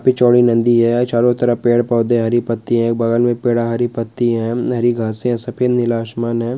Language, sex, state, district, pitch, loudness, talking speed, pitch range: Hindi, male, West Bengal, Dakshin Dinajpur, 120 Hz, -16 LUFS, 200 wpm, 115-120 Hz